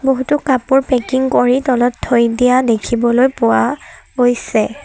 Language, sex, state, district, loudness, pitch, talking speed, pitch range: Assamese, female, Assam, Sonitpur, -14 LUFS, 250 Hz, 125 wpm, 240-265 Hz